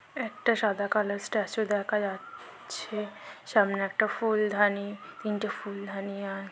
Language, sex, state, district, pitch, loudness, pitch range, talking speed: Bengali, female, West Bengal, North 24 Parganas, 205 Hz, -29 LUFS, 200-210 Hz, 110 wpm